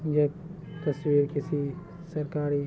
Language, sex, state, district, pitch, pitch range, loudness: Hindi, male, Bihar, Samastipur, 150 Hz, 145-165 Hz, -29 LUFS